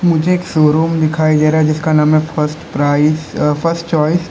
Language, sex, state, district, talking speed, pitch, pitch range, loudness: Hindi, male, Uttar Pradesh, Lalitpur, 195 wpm, 155 Hz, 150-165 Hz, -14 LUFS